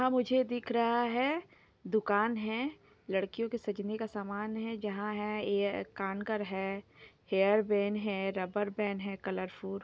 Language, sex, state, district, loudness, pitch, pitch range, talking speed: Hindi, female, Jharkhand, Sahebganj, -34 LUFS, 210 Hz, 200-225 Hz, 160 wpm